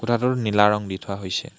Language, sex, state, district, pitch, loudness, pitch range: Assamese, male, Assam, Hailakandi, 105 Hz, -22 LUFS, 100-120 Hz